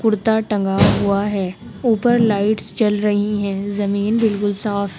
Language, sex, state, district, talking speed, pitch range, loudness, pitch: Hindi, female, Uttar Pradesh, Muzaffarnagar, 155 wpm, 200-220 Hz, -18 LUFS, 205 Hz